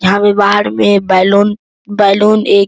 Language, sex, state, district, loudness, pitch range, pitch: Hindi, male, Bihar, Araria, -10 LUFS, 200-205 Hz, 200 Hz